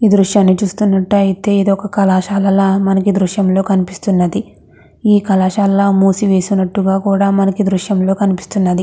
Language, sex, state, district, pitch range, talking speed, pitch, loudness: Telugu, female, Andhra Pradesh, Krishna, 190-200 Hz, 120 wpm, 195 Hz, -13 LUFS